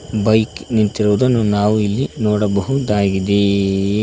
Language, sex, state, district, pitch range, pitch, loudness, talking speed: Kannada, male, Karnataka, Koppal, 100-110 Hz, 105 Hz, -16 LUFS, 75 wpm